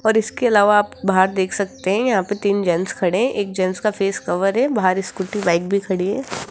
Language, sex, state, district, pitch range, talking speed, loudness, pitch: Hindi, female, Rajasthan, Jaipur, 185-210 Hz, 230 wpm, -19 LUFS, 195 Hz